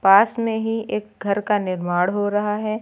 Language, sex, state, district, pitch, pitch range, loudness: Hindi, female, Uttar Pradesh, Lucknow, 210 Hz, 195-215 Hz, -21 LUFS